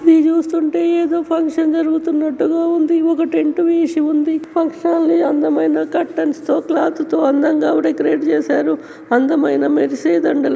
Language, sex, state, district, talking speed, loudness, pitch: Telugu, female, Telangana, Nalgonda, 140 wpm, -16 LUFS, 315 Hz